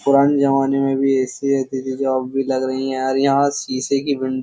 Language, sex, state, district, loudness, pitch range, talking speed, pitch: Hindi, male, Uttar Pradesh, Jyotiba Phule Nagar, -19 LUFS, 130-140 Hz, 255 wpm, 135 Hz